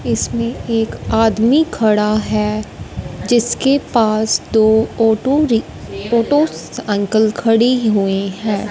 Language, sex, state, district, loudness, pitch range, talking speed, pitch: Hindi, female, Punjab, Fazilka, -15 LUFS, 210-235 Hz, 105 wpm, 220 Hz